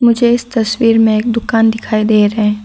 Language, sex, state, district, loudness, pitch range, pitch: Hindi, female, Arunachal Pradesh, Lower Dibang Valley, -12 LUFS, 215-235 Hz, 225 Hz